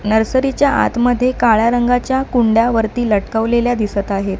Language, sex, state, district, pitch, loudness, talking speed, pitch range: Marathi, female, Maharashtra, Mumbai Suburban, 235 Hz, -15 LUFS, 135 wpm, 220-245 Hz